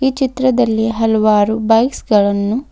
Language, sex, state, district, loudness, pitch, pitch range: Kannada, female, Karnataka, Bidar, -14 LUFS, 225 Hz, 215-255 Hz